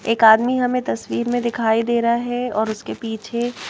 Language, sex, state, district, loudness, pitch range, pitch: Hindi, female, Madhya Pradesh, Bhopal, -20 LUFS, 220-245 Hz, 235 Hz